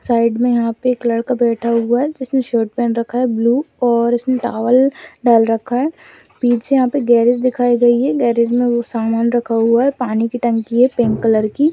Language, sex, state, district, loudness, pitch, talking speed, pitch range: Hindi, female, Rajasthan, Nagaur, -16 LUFS, 240 Hz, 205 wpm, 230-250 Hz